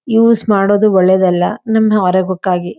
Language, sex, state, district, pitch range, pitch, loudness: Kannada, female, Karnataka, Dharwad, 185-215 Hz, 195 Hz, -12 LUFS